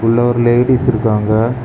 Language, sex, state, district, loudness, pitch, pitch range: Tamil, male, Tamil Nadu, Kanyakumari, -13 LUFS, 120 Hz, 110-120 Hz